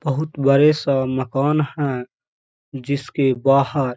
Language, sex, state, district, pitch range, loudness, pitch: Hindi, male, Uttar Pradesh, Hamirpur, 135-145 Hz, -19 LUFS, 140 Hz